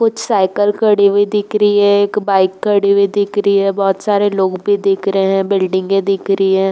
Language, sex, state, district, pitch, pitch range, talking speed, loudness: Hindi, female, Uttar Pradesh, Jalaun, 200 Hz, 195-205 Hz, 195 wpm, -14 LUFS